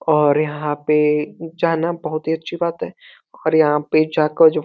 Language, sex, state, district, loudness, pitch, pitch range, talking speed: Hindi, male, Uttar Pradesh, Deoria, -18 LUFS, 155 Hz, 150-165 Hz, 195 wpm